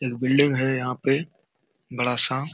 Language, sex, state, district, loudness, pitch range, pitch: Hindi, male, Bihar, Jamui, -22 LUFS, 125-135 Hz, 130 Hz